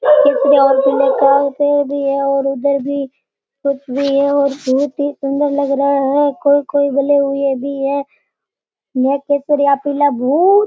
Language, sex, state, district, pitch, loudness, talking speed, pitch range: Rajasthani, male, Rajasthan, Churu, 280 Hz, -15 LUFS, 125 wpm, 275-285 Hz